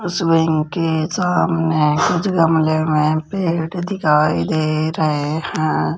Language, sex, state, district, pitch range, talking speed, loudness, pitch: Hindi, male, Rajasthan, Jaipur, 155-170 Hz, 110 wpm, -17 LUFS, 160 Hz